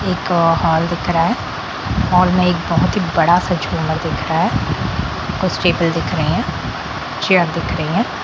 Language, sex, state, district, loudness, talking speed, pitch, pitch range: Hindi, female, Bihar, Darbhanga, -17 LUFS, 180 wpm, 175 Hz, 165-180 Hz